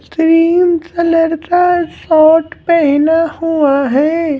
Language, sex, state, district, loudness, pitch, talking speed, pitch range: Hindi, male, Bihar, Patna, -12 LUFS, 330 Hz, 95 wpm, 310-340 Hz